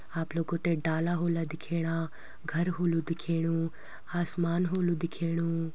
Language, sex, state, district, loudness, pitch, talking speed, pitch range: Garhwali, female, Uttarakhand, Uttarkashi, -31 LUFS, 165 Hz, 125 wpm, 165-170 Hz